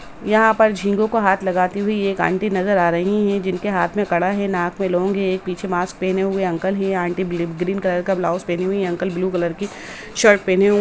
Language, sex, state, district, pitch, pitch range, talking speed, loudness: Hindi, female, Bihar, Samastipur, 190 Hz, 180-200 Hz, 260 wpm, -19 LUFS